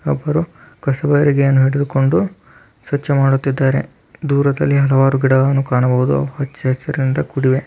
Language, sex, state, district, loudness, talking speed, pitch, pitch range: Kannada, male, Karnataka, Belgaum, -16 LUFS, 95 wpm, 135 Hz, 135-140 Hz